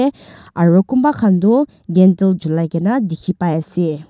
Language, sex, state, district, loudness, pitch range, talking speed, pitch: Nagamese, female, Nagaland, Dimapur, -15 LUFS, 170-220 Hz, 145 wpm, 185 Hz